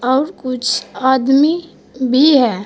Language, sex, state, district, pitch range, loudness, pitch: Hindi, female, Uttar Pradesh, Saharanpur, 255-285 Hz, -15 LUFS, 260 Hz